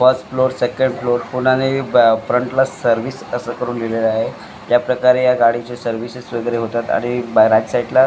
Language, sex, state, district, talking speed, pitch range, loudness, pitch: Marathi, male, Maharashtra, Mumbai Suburban, 180 wpm, 115-130 Hz, -17 LUFS, 120 Hz